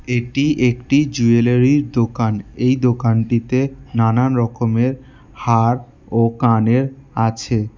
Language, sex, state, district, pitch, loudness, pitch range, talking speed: Bengali, male, West Bengal, Alipurduar, 120 Hz, -17 LUFS, 115-130 Hz, 90 wpm